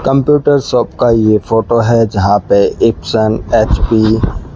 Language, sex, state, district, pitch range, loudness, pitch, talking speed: Hindi, male, Rajasthan, Bikaner, 105-120 Hz, -12 LUFS, 115 Hz, 145 wpm